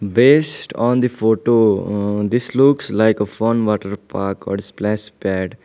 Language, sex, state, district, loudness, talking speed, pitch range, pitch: English, male, Sikkim, Gangtok, -17 LUFS, 160 wpm, 100-120 Hz, 105 Hz